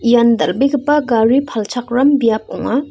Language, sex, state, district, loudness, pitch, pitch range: Garo, female, Meghalaya, North Garo Hills, -15 LUFS, 245 Hz, 235-280 Hz